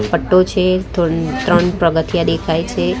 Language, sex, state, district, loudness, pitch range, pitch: Gujarati, female, Gujarat, Gandhinagar, -16 LUFS, 160-185 Hz, 175 Hz